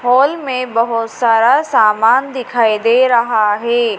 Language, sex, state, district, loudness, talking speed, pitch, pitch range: Hindi, female, Madhya Pradesh, Dhar, -13 LUFS, 135 wpm, 235 Hz, 225-255 Hz